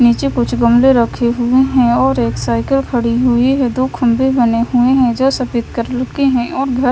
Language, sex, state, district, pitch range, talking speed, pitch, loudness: Hindi, female, Punjab, Kapurthala, 235-265 Hz, 210 wpm, 250 Hz, -14 LUFS